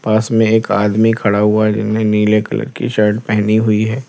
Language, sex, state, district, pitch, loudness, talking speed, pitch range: Hindi, male, Uttar Pradesh, Lalitpur, 110 Hz, -14 LUFS, 220 wpm, 105-110 Hz